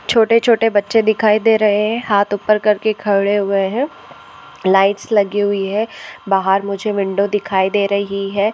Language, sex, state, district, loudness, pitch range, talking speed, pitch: Hindi, female, Maharashtra, Nagpur, -16 LUFS, 200-220 Hz, 170 wpm, 205 Hz